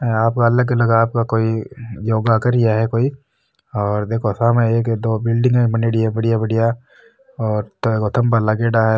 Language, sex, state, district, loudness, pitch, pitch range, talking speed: Marwari, male, Rajasthan, Nagaur, -17 LUFS, 115 Hz, 110-120 Hz, 175 wpm